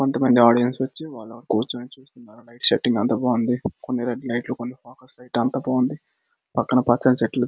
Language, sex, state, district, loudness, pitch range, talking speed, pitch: Telugu, male, Andhra Pradesh, Srikakulam, -21 LUFS, 120-130 Hz, 175 wpm, 125 Hz